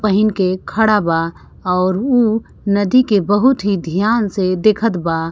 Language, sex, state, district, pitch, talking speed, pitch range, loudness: Bhojpuri, female, Uttar Pradesh, Gorakhpur, 205 Hz, 160 wpm, 185-220 Hz, -16 LUFS